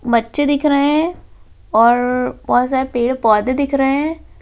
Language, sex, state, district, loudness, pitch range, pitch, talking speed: Hindi, female, Bihar, Begusarai, -16 LUFS, 240-285 Hz, 260 Hz, 150 wpm